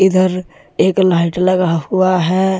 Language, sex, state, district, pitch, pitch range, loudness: Hindi, male, Jharkhand, Deoghar, 185 Hz, 180-190 Hz, -14 LUFS